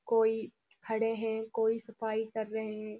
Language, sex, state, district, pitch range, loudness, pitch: Hindi, female, Uttarakhand, Uttarkashi, 220-225 Hz, -33 LUFS, 225 Hz